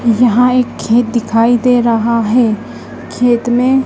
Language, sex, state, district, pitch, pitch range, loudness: Hindi, female, Madhya Pradesh, Dhar, 235 Hz, 225-245 Hz, -12 LUFS